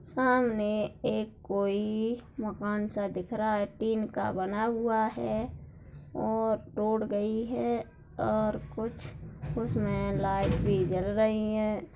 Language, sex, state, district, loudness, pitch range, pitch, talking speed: Hindi, female, Bihar, Darbhanga, -31 LUFS, 200-220 Hz, 215 Hz, 125 wpm